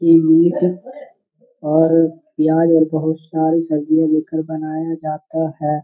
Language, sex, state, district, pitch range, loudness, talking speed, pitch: Hindi, male, Bihar, Darbhanga, 155-165 Hz, -17 LUFS, 135 wpm, 160 Hz